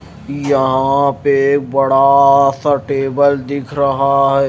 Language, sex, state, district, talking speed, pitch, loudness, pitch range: Hindi, male, Himachal Pradesh, Shimla, 120 wpm, 140 Hz, -13 LUFS, 135-140 Hz